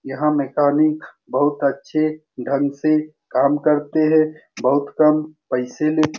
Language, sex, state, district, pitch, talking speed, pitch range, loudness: Hindi, male, Bihar, Saran, 150 Hz, 135 wpm, 140-155 Hz, -19 LUFS